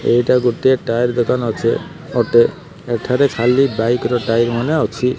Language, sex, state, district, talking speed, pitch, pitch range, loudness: Odia, male, Odisha, Malkangiri, 150 wpm, 120 Hz, 115-125 Hz, -16 LUFS